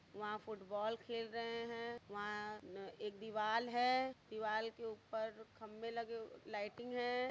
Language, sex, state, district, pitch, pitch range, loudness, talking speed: Hindi, female, Uttar Pradesh, Varanasi, 220 Hz, 215-235 Hz, -43 LUFS, 140 wpm